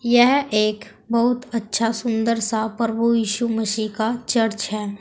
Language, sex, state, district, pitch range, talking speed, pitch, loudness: Hindi, female, Uttar Pradesh, Saharanpur, 220-235 Hz, 145 wpm, 225 Hz, -21 LUFS